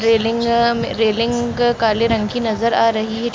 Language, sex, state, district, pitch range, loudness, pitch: Hindi, female, Uttar Pradesh, Jalaun, 225-235 Hz, -17 LUFS, 230 Hz